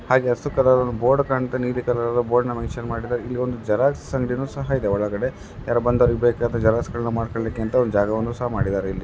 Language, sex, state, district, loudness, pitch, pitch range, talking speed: Kannada, male, Karnataka, Bellary, -22 LUFS, 120 Hz, 115-125 Hz, 140 wpm